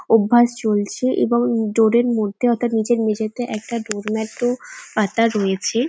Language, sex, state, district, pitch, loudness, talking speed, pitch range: Bengali, female, West Bengal, Jalpaiguri, 225 Hz, -19 LUFS, 155 wpm, 215-240 Hz